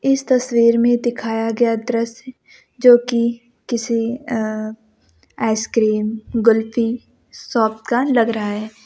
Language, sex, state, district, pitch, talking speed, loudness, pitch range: Hindi, female, Uttar Pradesh, Lucknow, 230 Hz, 115 wpm, -18 LUFS, 220-240 Hz